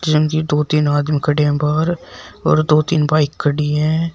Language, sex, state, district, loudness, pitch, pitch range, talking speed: Hindi, male, Uttar Pradesh, Shamli, -16 LUFS, 150 Hz, 150-155 Hz, 175 wpm